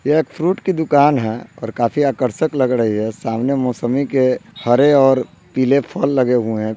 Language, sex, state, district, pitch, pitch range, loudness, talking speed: Hindi, male, Bihar, Sitamarhi, 130 Hz, 120-145 Hz, -17 LUFS, 195 wpm